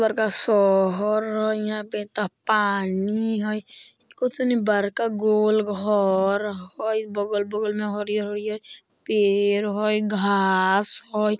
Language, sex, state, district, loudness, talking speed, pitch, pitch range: Bajjika, female, Bihar, Vaishali, -23 LUFS, 105 wpm, 210 Hz, 205-215 Hz